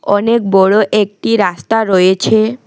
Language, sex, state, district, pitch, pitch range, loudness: Bengali, female, West Bengal, Alipurduar, 210 Hz, 190-220 Hz, -12 LUFS